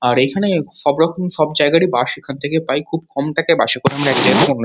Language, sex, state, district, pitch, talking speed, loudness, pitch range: Bengali, male, West Bengal, Kolkata, 145 Hz, 270 wpm, -15 LUFS, 135-165 Hz